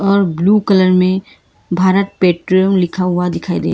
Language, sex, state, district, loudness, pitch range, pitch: Hindi, female, Karnataka, Bangalore, -14 LUFS, 180-195 Hz, 185 Hz